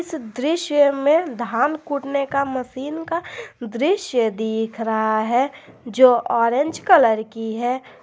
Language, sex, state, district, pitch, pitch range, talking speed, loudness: Hindi, female, Jharkhand, Garhwa, 260 Hz, 230-290 Hz, 125 wpm, -20 LUFS